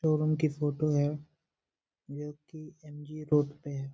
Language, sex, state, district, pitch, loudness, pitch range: Hindi, male, Chhattisgarh, Sarguja, 150 Hz, -31 LUFS, 145-155 Hz